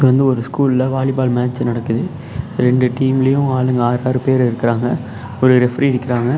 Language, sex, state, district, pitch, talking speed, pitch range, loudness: Tamil, male, Tamil Nadu, Namakkal, 125 Hz, 180 wpm, 120-130 Hz, -16 LUFS